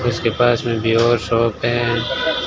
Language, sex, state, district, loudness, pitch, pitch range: Hindi, male, Rajasthan, Bikaner, -18 LUFS, 115 Hz, 115-120 Hz